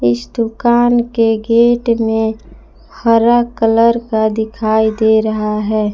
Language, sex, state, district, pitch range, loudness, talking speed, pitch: Hindi, female, Jharkhand, Palamu, 220-235 Hz, -14 LUFS, 120 wpm, 225 Hz